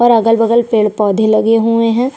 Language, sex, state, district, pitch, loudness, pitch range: Hindi, female, Chhattisgarh, Sukma, 225 Hz, -12 LUFS, 220-235 Hz